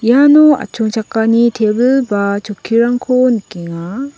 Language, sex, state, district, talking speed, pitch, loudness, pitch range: Garo, female, Meghalaya, West Garo Hills, 85 wpm, 230 Hz, -13 LUFS, 210-255 Hz